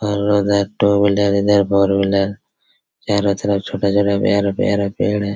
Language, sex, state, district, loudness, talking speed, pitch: Hindi, male, Chhattisgarh, Raigarh, -17 LUFS, 125 wpm, 100 Hz